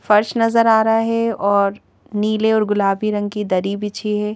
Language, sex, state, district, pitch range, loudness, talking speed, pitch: Hindi, female, Madhya Pradesh, Bhopal, 205-220 Hz, -18 LUFS, 195 wpm, 210 Hz